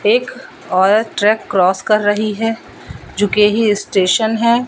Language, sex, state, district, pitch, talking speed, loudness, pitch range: Hindi, female, Madhya Pradesh, Katni, 215 Hz, 140 wpm, -15 LUFS, 205-225 Hz